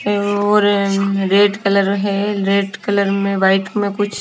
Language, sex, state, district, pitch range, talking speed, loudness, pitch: Hindi, female, Himachal Pradesh, Shimla, 195-205 Hz, 140 wpm, -16 LUFS, 200 Hz